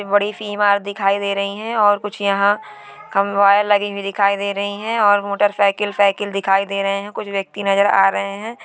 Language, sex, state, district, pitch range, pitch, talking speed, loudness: Hindi, female, Bihar, Sitamarhi, 200-205 Hz, 200 Hz, 210 wpm, -18 LUFS